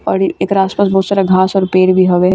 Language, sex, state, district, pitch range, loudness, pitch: Bhojpuri, female, Bihar, Gopalganj, 185-195 Hz, -12 LUFS, 190 Hz